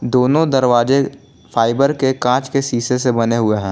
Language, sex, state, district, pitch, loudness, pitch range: Hindi, male, Jharkhand, Garhwa, 125 Hz, -16 LUFS, 120-135 Hz